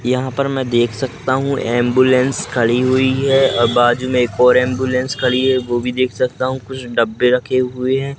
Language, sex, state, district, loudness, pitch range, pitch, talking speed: Hindi, male, Madhya Pradesh, Katni, -16 LUFS, 125-130 Hz, 130 Hz, 215 wpm